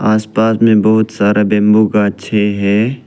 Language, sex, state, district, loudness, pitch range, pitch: Hindi, male, Arunachal Pradesh, Lower Dibang Valley, -12 LUFS, 105-110 Hz, 105 Hz